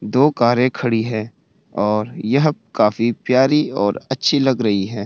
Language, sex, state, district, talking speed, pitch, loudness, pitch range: Hindi, male, Uttarakhand, Tehri Garhwal, 155 wpm, 120 Hz, -18 LUFS, 105-135 Hz